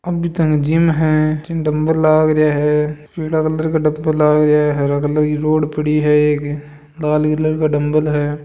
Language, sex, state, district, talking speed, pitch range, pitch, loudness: Marwari, male, Rajasthan, Nagaur, 185 wpm, 150-155 Hz, 150 Hz, -16 LUFS